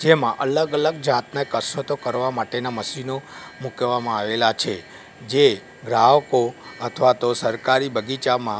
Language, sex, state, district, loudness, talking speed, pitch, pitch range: Gujarati, male, Gujarat, Gandhinagar, -21 LUFS, 120 wpm, 130 Hz, 120-140 Hz